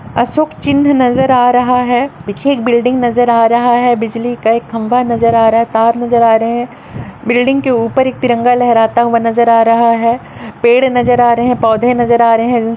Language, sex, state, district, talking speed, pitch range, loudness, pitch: Hindi, female, Chhattisgarh, Kabirdham, 220 wpm, 230-245 Hz, -11 LUFS, 240 Hz